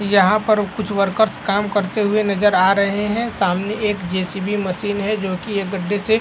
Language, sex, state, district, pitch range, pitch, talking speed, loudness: Hindi, male, Uttar Pradesh, Varanasi, 195-210 Hz, 205 Hz, 215 wpm, -19 LUFS